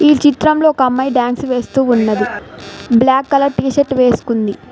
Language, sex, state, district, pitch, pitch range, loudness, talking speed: Telugu, female, Telangana, Mahabubabad, 260 Hz, 245-280 Hz, -13 LUFS, 155 wpm